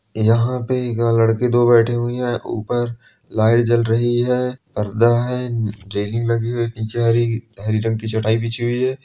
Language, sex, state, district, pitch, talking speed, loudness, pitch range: Hindi, male, Bihar, Bhagalpur, 115 Hz, 160 wpm, -19 LUFS, 115-120 Hz